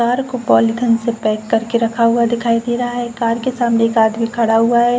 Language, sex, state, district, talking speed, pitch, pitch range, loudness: Hindi, female, Uttar Pradesh, Jalaun, 255 wpm, 235 Hz, 230-240 Hz, -16 LUFS